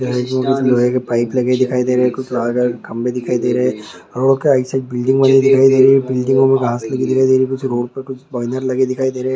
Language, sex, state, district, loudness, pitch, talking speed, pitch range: Hindi, male, Andhra Pradesh, Guntur, -15 LUFS, 130 Hz, 275 wpm, 125-130 Hz